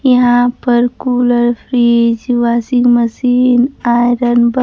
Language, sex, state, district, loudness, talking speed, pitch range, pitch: Hindi, female, Bihar, Kaimur, -12 LUFS, 105 wpm, 240-245 Hz, 245 Hz